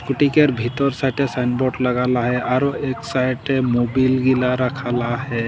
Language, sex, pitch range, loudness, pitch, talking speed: Sadri, male, 125-135 Hz, -19 LUFS, 130 Hz, 155 wpm